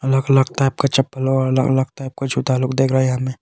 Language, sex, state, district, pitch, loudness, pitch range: Hindi, male, Arunachal Pradesh, Longding, 135 Hz, -18 LUFS, 130-135 Hz